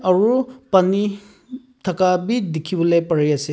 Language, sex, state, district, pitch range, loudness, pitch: Nagamese, male, Nagaland, Kohima, 170-230 Hz, -19 LUFS, 190 Hz